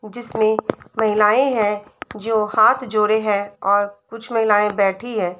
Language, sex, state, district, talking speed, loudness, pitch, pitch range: Hindi, female, Uttar Pradesh, Budaun, 135 wpm, -19 LUFS, 215 Hz, 205-225 Hz